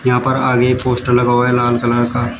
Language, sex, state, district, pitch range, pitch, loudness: Hindi, male, Uttar Pradesh, Shamli, 120-125 Hz, 125 Hz, -14 LUFS